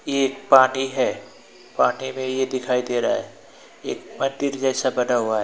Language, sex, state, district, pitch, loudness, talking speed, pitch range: Hindi, male, West Bengal, Alipurduar, 130 Hz, -22 LUFS, 185 wpm, 125-135 Hz